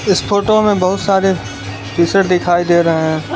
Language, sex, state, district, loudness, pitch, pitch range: Hindi, male, Gujarat, Valsad, -14 LUFS, 175 Hz, 160-195 Hz